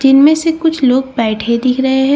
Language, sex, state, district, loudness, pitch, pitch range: Hindi, female, Bihar, Katihar, -12 LUFS, 265 Hz, 255-290 Hz